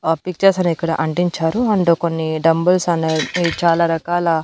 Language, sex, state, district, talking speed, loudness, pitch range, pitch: Telugu, female, Andhra Pradesh, Annamaya, 135 wpm, -17 LUFS, 160-175 Hz, 170 Hz